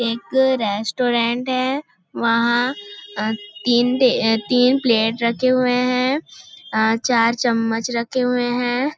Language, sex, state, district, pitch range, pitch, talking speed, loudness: Hindi, female, Chhattisgarh, Balrampur, 230-255 Hz, 245 Hz, 125 wpm, -19 LUFS